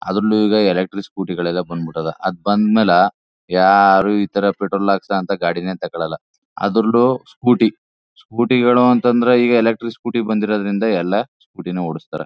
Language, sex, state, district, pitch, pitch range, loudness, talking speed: Kannada, male, Karnataka, Chamarajanagar, 100 Hz, 95-115 Hz, -17 LUFS, 130 wpm